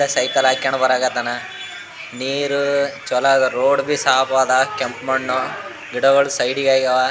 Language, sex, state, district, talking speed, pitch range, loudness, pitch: Kannada, male, Karnataka, Raichur, 110 wpm, 130-140 Hz, -18 LUFS, 130 Hz